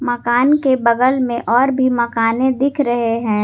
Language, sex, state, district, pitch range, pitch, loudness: Hindi, female, Jharkhand, Garhwa, 235-260 Hz, 245 Hz, -16 LUFS